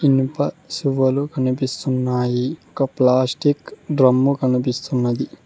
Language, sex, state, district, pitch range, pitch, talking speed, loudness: Telugu, male, Telangana, Mahabubabad, 125-140 Hz, 130 Hz, 75 wpm, -20 LUFS